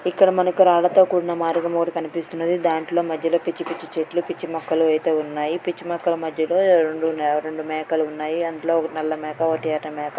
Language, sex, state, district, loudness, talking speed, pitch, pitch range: Telugu, female, Telangana, Karimnagar, -21 LUFS, 170 wpm, 165 Hz, 155-170 Hz